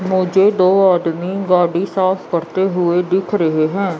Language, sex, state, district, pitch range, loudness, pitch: Hindi, female, Chandigarh, Chandigarh, 175-190 Hz, -15 LUFS, 185 Hz